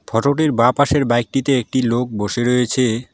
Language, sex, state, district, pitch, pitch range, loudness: Bengali, male, West Bengal, Alipurduar, 125 Hz, 120-135 Hz, -17 LUFS